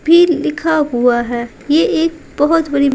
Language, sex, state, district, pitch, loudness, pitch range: Hindi, female, Bihar, Patna, 300 Hz, -14 LUFS, 255-325 Hz